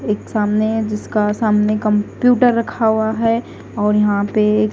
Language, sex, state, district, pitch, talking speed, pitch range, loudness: Hindi, female, Punjab, Fazilka, 215 Hz, 165 wpm, 210-225 Hz, -17 LUFS